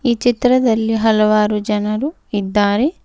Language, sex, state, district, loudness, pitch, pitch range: Kannada, female, Karnataka, Bidar, -16 LUFS, 220 Hz, 210-245 Hz